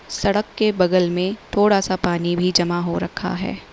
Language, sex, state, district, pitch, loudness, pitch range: Hindi, female, Uttar Pradesh, Lalitpur, 185 Hz, -20 LUFS, 175-200 Hz